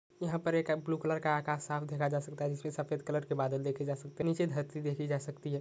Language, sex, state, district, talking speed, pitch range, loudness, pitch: Hindi, male, Maharashtra, Sindhudurg, 290 wpm, 145-155 Hz, -35 LUFS, 150 Hz